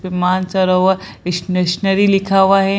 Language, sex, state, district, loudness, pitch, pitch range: Hindi, female, Bihar, Samastipur, -15 LUFS, 190 Hz, 185-195 Hz